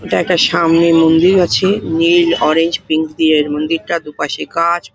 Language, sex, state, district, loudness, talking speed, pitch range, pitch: Bengali, female, West Bengal, Paschim Medinipur, -13 LUFS, 155 wpm, 160-170 Hz, 165 Hz